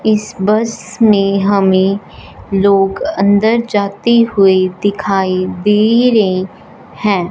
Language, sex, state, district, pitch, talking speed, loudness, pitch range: Hindi, female, Punjab, Fazilka, 200 Hz, 100 wpm, -13 LUFS, 190-215 Hz